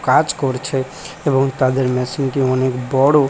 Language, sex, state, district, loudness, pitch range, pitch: Bengali, male, West Bengal, Paschim Medinipur, -18 LUFS, 130-135 Hz, 135 Hz